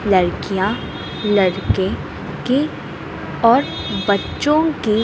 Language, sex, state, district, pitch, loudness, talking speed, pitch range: Hindi, female, Bihar, Katihar, 210 Hz, -19 LUFS, 70 wpm, 195-255 Hz